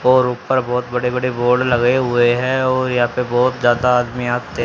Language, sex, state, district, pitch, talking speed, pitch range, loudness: Hindi, female, Haryana, Jhajjar, 125 Hz, 205 wpm, 120-125 Hz, -17 LUFS